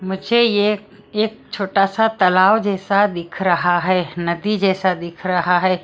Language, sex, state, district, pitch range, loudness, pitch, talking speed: Hindi, female, Maharashtra, Mumbai Suburban, 180-205 Hz, -18 LUFS, 190 Hz, 155 wpm